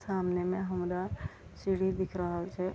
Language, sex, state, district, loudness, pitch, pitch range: Maithili, female, Bihar, Vaishali, -34 LUFS, 180 Hz, 175-185 Hz